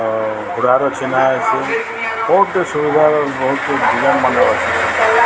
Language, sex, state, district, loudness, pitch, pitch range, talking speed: Odia, male, Odisha, Sambalpur, -15 LUFS, 130 Hz, 120-150 Hz, 125 wpm